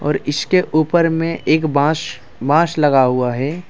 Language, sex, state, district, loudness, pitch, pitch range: Hindi, male, Jharkhand, Deoghar, -16 LUFS, 155 Hz, 135-165 Hz